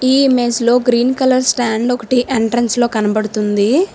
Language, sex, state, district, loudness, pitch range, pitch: Telugu, female, Telangana, Hyderabad, -14 LUFS, 225-255 Hz, 240 Hz